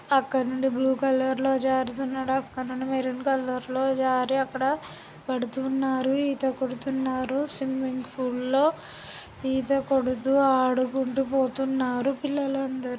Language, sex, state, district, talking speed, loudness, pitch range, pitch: Telugu, male, Andhra Pradesh, Guntur, 105 wpm, -26 LUFS, 260-270 Hz, 265 Hz